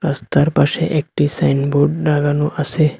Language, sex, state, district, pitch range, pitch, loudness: Bengali, male, Assam, Hailakandi, 145-155 Hz, 150 Hz, -17 LUFS